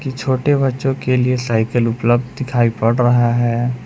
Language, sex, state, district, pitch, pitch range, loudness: Hindi, male, Jharkhand, Palamu, 120 Hz, 120-130 Hz, -17 LUFS